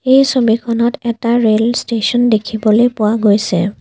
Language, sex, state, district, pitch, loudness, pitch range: Assamese, female, Assam, Kamrup Metropolitan, 230 Hz, -13 LUFS, 215-240 Hz